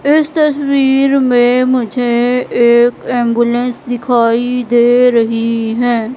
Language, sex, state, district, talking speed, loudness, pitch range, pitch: Hindi, female, Madhya Pradesh, Katni, 95 wpm, -12 LUFS, 235-255 Hz, 245 Hz